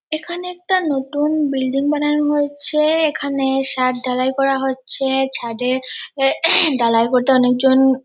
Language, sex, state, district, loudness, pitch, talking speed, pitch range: Bengali, female, West Bengal, Purulia, -17 LUFS, 270 Hz, 135 wpm, 260-295 Hz